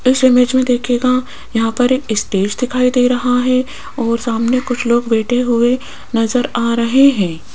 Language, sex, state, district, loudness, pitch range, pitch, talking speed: Hindi, female, Rajasthan, Jaipur, -15 LUFS, 235-255 Hz, 245 Hz, 175 wpm